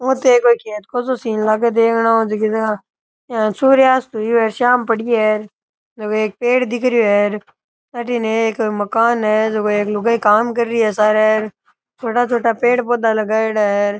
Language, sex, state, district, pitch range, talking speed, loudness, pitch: Rajasthani, male, Rajasthan, Nagaur, 215-240 Hz, 130 wpm, -16 LUFS, 225 Hz